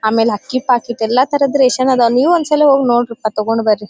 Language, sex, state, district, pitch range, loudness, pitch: Kannada, female, Karnataka, Dharwad, 225-265 Hz, -14 LUFS, 245 Hz